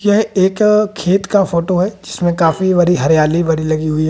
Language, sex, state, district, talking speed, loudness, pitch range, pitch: Hindi, female, Haryana, Jhajjar, 205 wpm, -14 LUFS, 160-200 Hz, 180 Hz